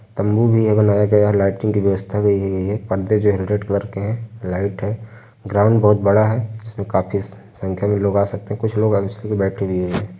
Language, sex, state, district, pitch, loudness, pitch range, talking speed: Hindi, male, Uttar Pradesh, Varanasi, 105 Hz, -18 LUFS, 100-105 Hz, 225 wpm